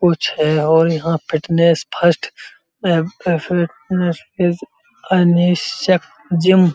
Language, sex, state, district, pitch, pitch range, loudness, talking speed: Hindi, male, Uttar Pradesh, Muzaffarnagar, 170 Hz, 160-180 Hz, -16 LUFS, 70 wpm